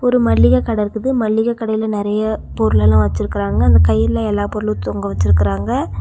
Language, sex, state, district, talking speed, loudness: Tamil, female, Tamil Nadu, Nilgiris, 150 wpm, -16 LUFS